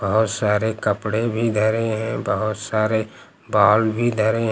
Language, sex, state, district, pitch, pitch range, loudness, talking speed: Hindi, male, Uttar Pradesh, Lucknow, 110 Hz, 105-110 Hz, -20 LUFS, 160 wpm